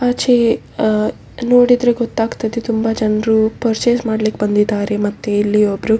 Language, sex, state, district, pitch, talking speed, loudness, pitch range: Kannada, female, Karnataka, Dakshina Kannada, 220 Hz, 120 wpm, -16 LUFS, 210-235 Hz